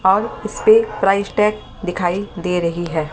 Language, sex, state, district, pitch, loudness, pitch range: Hindi, female, Delhi, New Delhi, 190 Hz, -18 LUFS, 175-210 Hz